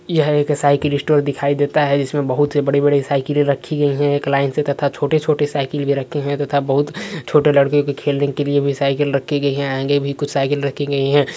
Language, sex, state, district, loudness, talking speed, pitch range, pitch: Hindi, male, Uttar Pradesh, Varanasi, -17 LUFS, 230 wpm, 140-145 Hz, 145 Hz